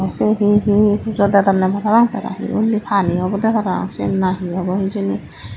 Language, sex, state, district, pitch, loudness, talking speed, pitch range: Chakma, female, Tripura, Dhalai, 200 Hz, -17 LUFS, 175 wpm, 185-215 Hz